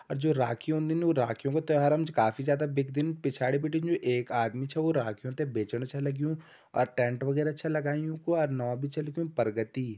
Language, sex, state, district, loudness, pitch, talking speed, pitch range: Garhwali, male, Uttarakhand, Uttarkashi, -30 LUFS, 140 Hz, 230 wpm, 125-155 Hz